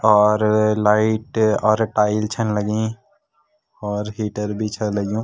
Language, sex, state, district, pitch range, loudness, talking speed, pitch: Garhwali, male, Uttarakhand, Tehri Garhwal, 105-110 Hz, -19 LUFS, 125 wpm, 110 Hz